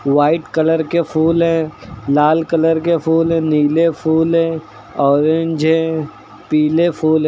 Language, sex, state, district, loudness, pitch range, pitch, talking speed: Hindi, male, Uttar Pradesh, Lucknow, -15 LUFS, 155-165 Hz, 160 Hz, 150 wpm